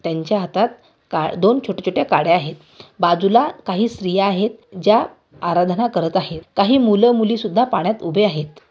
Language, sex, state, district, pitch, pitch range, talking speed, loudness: Marathi, female, Maharashtra, Aurangabad, 200 Hz, 175-225 Hz, 150 wpm, -18 LUFS